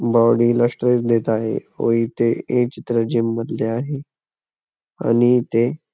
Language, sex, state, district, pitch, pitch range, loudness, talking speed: Marathi, male, Maharashtra, Pune, 120 Hz, 115-125 Hz, -19 LUFS, 150 wpm